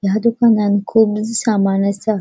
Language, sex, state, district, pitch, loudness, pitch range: Konkani, female, Goa, North and South Goa, 215 Hz, -15 LUFS, 200-225 Hz